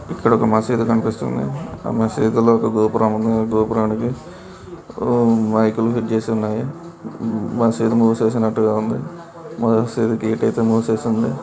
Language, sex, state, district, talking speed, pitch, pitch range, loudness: Telugu, male, Telangana, Karimnagar, 125 wpm, 115 Hz, 110-115 Hz, -18 LUFS